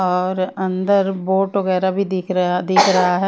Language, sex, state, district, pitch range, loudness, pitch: Hindi, female, Maharashtra, Mumbai Suburban, 185-195 Hz, -18 LUFS, 185 Hz